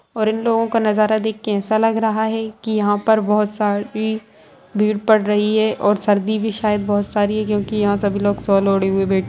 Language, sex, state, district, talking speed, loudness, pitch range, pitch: Hindi, female, Bihar, Sitamarhi, 225 wpm, -18 LUFS, 205-220 Hz, 210 Hz